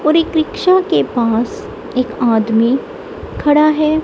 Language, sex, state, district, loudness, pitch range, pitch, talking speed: Hindi, female, Punjab, Kapurthala, -15 LUFS, 235-315 Hz, 300 Hz, 135 wpm